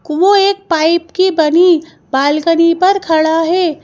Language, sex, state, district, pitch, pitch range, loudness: Hindi, female, Madhya Pradesh, Bhopal, 335 Hz, 320-365 Hz, -12 LUFS